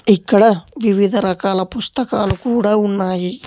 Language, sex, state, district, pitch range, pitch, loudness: Telugu, male, Telangana, Hyderabad, 190-225 Hz, 205 Hz, -16 LUFS